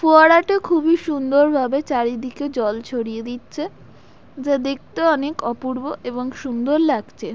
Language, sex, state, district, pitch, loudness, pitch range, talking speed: Bengali, female, West Bengal, Dakshin Dinajpur, 275 Hz, -20 LUFS, 245-310 Hz, 120 wpm